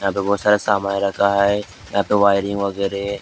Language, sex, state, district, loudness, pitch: Hindi, male, Maharashtra, Gondia, -19 LUFS, 100 Hz